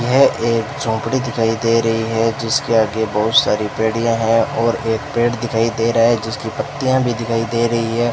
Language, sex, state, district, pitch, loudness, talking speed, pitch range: Hindi, male, Rajasthan, Bikaner, 115 Hz, -17 LUFS, 200 wpm, 115-120 Hz